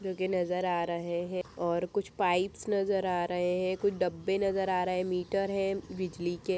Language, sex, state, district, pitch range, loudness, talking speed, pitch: Hindi, female, Bihar, Saharsa, 180-195 Hz, -31 LUFS, 210 wpm, 185 Hz